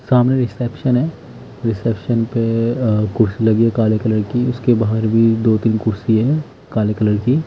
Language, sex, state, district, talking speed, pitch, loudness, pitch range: Hindi, male, Himachal Pradesh, Shimla, 160 wpm, 115 Hz, -17 LUFS, 110-125 Hz